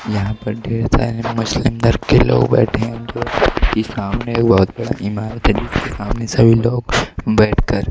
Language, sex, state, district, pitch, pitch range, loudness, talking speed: Hindi, male, Odisha, Malkangiri, 115 Hz, 105-115 Hz, -17 LUFS, 120 wpm